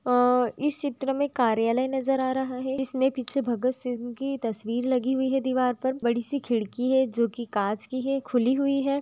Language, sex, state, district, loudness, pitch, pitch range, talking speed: Hindi, female, Jharkhand, Sahebganj, -26 LUFS, 255 Hz, 240-270 Hz, 205 wpm